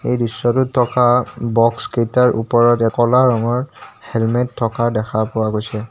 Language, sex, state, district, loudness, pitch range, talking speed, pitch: Assamese, male, Assam, Kamrup Metropolitan, -17 LUFS, 115-125 Hz, 120 wpm, 120 Hz